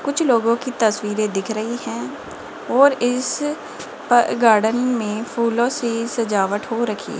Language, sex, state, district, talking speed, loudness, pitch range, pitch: Hindi, female, Rajasthan, Jaipur, 150 wpm, -19 LUFS, 220-245 Hz, 235 Hz